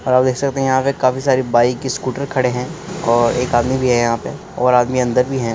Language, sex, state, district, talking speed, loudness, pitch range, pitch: Hindi, male, Uttar Pradesh, Muzaffarnagar, 270 wpm, -17 LUFS, 120-130 Hz, 130 Hz